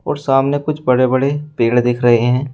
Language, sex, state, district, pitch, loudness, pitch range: Hindi, male, Uttar Pradesh, Shamli, 130 Hz, -15 LUFS, 120-145 Hz